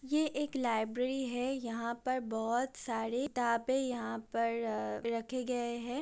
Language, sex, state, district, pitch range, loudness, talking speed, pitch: Hindi, female, Uttar Pradesh, Budaun, 230-260 Hz, -35 LUFS, 150 wpm, 240 Hz